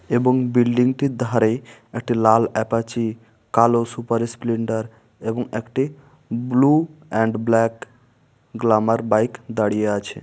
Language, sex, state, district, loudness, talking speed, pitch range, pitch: Bengali, male, West Bengal, Malda, -20 LUFS, 110 wpm, 110-125 Hz, 115 Hz